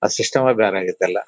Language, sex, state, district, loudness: Kannada, male, Karnataka, Bellary, -18 LUFS